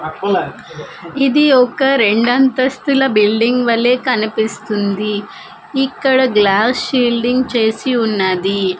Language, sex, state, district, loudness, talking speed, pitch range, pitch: Telugu, female, Andhra Pradesh, Manyam, -14 LUFS, 75 wpm, 210-260 Hz, 240 Hz